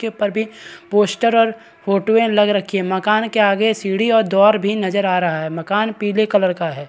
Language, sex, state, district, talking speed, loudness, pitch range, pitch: Hindi, male, Chhattisgarh, Bastar, 225 wpm, -17 LUFS, 195-220 Hz, 205 Hz